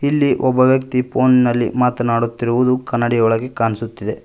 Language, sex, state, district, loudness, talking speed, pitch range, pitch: Kannada, male, Karnataka, Koppal, -16 LUFS, 125 wpm, 115-130 Hz, 125 Hz